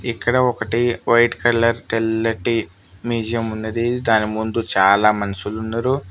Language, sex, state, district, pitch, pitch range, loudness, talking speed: Telugu, male, Telangana, Mahabubabad, 115 Hz, 110-120 Hz, -19 LUFS, 120 wpm